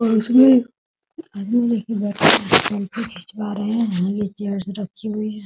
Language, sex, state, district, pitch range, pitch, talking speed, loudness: Hindi, female, Bihar, Muzaffarpur, 205-230 Hz, 215 Hz, 120 wpm, -18 LUFS